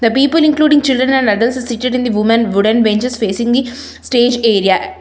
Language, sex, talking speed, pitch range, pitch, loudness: English, female, 215 wpm, 225-265 Hz, 240 Hz, -13 LUFS